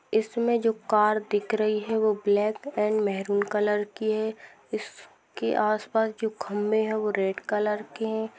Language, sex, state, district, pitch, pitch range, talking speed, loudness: Hindi, female, Bihar, Sitamarhi, 215 Hz, 210-220 Hz, 165 wpm, -26 LUFS